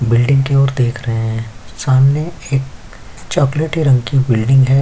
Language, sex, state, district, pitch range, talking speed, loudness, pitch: Hindi, male, Chhattisgarh, Kabirdham, 115-135 Hz, 160 wpm, -15 LUFS, 130 Hz